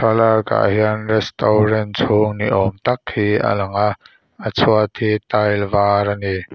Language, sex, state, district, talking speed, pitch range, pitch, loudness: Mizo, male, Mizoram, Aizawl, 165 wpm, 100-110 Hz, 105 Hz, -17 LUFS